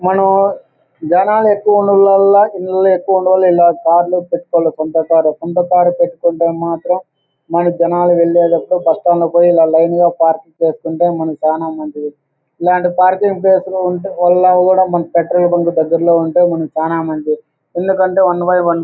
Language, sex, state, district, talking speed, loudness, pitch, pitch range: Telugu, male, Andhra Pradesh, Anantapur, 135 wpm, -13 LUFS, 175 Hz, 165-185 Hz